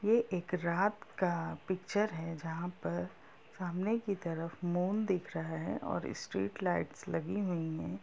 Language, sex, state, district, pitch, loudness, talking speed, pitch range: Hindi, female, Bihar, Sitamarhi, 175 Hz, -36 LUFS, 150 wpm, 165-195 Hz